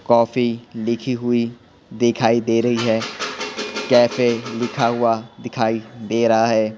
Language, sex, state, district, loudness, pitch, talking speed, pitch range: Hindi, male, Bihar, Patna, -19 LUFS, 115 Hz, 125 wpm, 115-120 Hz